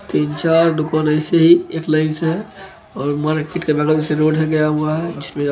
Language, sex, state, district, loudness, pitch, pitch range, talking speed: Hindi, male, Bihar, Begusarai, -17 LUFS, 155 Hz, 150-165 Hz, 215 wpm